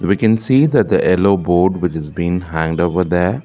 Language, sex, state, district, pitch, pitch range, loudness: English, male, Karnataka, Bangalore, 90 Hz, 85-100 Hz, -15 LUFS